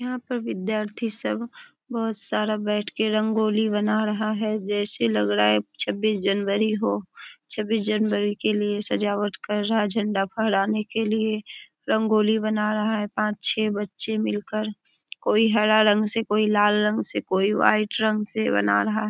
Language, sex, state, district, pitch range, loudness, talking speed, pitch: Hindi, female, Bihar, Araria, 205-220 Hz, -23 LUFS, 170 wpm, 215 Hz